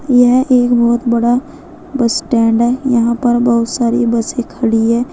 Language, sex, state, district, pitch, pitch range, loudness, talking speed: Hindi, female, Uttar Pradesh, Saharanpur, 240 Hz, 235-250 Hz, -13 LUFS, 165 wpm